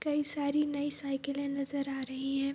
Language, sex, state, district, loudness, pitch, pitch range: Hindi, female, Bihar, Araria, -34 LUFS, 280 Hz, 275-290 Hz